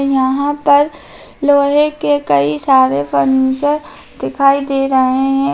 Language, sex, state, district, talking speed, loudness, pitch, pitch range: Hindi, female, Bihar, Darbhanga, 120 wpm, -13 LUFS, 275 Hz, 260-285 Hz